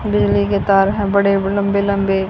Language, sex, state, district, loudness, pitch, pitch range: Hindi, female, Haryana, Jhajjar, -16 LUFS, 195 Hz, 195-200 Hz